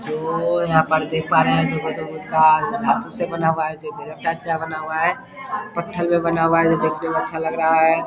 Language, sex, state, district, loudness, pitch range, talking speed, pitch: Hindi, male, Bihar, Vaishali, -20 LUFS, 160-170 Hz, 195 wpm, 160 Hz